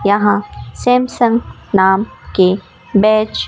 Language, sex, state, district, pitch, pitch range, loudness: Hindi, female, Rajasthan, Bikaner, 205 Hz, 195-230 Hz, -14 LUFS